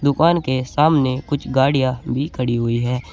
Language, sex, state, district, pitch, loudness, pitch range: Hindi, male, Uttar Pradesh, Saharanpur, 130 Hz, -19 LUFS, 125-145 Hz